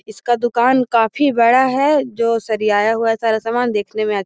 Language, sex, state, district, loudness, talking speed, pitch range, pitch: Magahi, female, Bihar, Gaya, -16 LUFS, 195 wpm, 215-245 Hz, 230 Hz